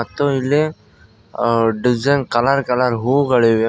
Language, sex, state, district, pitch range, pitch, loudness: Kannada, male, Karnataka, Koppal, 115-140 Hz, 125 Hz, -17 LUFS